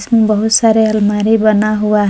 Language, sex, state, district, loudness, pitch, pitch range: Hindi, female, Jharkhand, Palamu, -12 LUFS, 215 Hz, 210-220 Hz